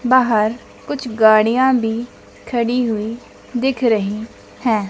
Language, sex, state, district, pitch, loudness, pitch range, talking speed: Hindi, female, Madhya Pradesh, Dhar, 235 Hz, -17 LUFS, 220-250 Hz, 110 wpm